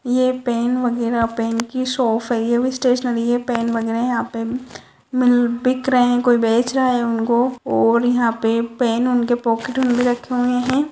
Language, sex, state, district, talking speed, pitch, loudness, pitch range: Hindi, female, Rajasthan, Nagaur, 180 wpm, 245 Hz, -18 LUFS, 230-250 Hz